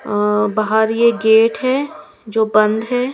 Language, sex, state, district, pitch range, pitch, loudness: Hindi, female, Chandigarh, Chandigarh, 210-235 Hz, 220 Hz, -15 LUFS